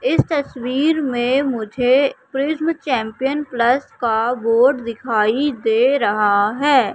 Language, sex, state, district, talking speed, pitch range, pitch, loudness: Hindi, female, Madhya Pradesh, Katni, 110 wpm, 230-280 Hz, 255 Hz, -18 LUFS